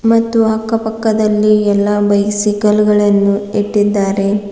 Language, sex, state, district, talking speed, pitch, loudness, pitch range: Kannada, female, Karnataka, Bidar, 95 wpm, 210 Hz, -13 LUFS, 205-220 Hz